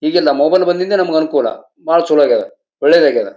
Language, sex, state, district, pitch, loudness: Kannada, male, Karnataka, Bijapur, 200 Hz, -13 LUFS